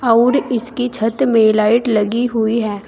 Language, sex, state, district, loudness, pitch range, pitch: Hindi, female, Uttar Pradesh, Saharanpur, -15 LUFS, 220-245 Hz, 230 Hz